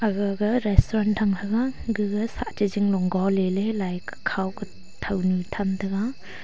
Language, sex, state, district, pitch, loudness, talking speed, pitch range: Wancho, female, Arunachal Pradesh, Longding, 200 Hz, -25 LUFS, 160 wpm, 190-215 Hz